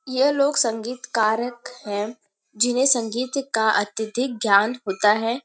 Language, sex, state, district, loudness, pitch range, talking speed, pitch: Hindi, female, Uttar Pradesh, Varanasi, -21 LUFS, 215-255 Hz, 120 wpm, 230 Hz